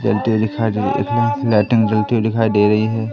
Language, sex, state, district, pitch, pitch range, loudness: Hindi, male, Madhya Pradesh, Katni, 110 Hz, 105-115 Hz, -17 LUFS